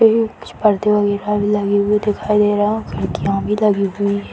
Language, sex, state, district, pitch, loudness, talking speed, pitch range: Hindi, female, Bihar, Samastipur, 205 Hz, -17 LUFS, 210 wpm, 200-210 Hz